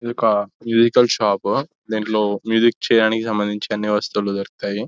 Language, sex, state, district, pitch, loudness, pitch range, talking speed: Telugu, male, Telangana, Nalgonda, 110 Hz, -19 LUFS, 105-115 Hz, 135 wpm